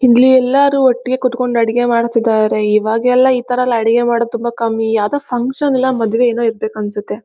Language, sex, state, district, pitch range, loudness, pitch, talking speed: Kannada, female, Karnataka, Bellary, 225-250 Hz, -14 LUFS, 235 Hz, 175 wpm